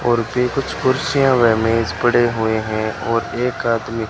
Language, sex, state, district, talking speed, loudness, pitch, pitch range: Hindi, male, Rajasthan, Bikaner, 175 wpm, -18 LUFS, 115 Hz, 115-125 Hz